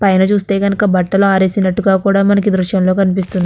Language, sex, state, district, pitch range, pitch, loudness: Telugu, female, Andhra Pradesh, Guntur, 190-200 Hz, 195 Hz, -13 LUFS